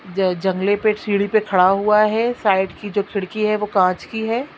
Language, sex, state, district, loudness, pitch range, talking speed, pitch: Hindi, female, Chhattisgarh, Sukma, -19 LUFS, 190-215 Hz, 220 wpm, 205 Hz